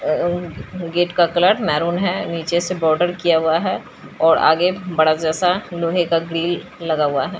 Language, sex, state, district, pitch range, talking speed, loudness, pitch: Hindi, female, Bihar, Katihar, 165-175 Hz, 185 wpm, -18 LUFS, 170 Hz